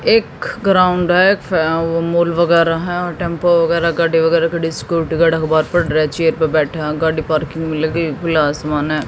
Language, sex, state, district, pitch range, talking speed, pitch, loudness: Hindi, female, Haryana, Jhajjar, 160-170 Hz, 165 wpm, 165 Hz, -16 LUFS